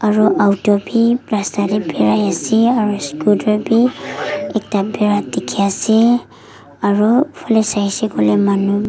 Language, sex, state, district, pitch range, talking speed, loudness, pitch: Nagamese, female, Nagaland, Dimapur, 200-225 Hz, 135 wpm, -16 LUFS, 210 Hz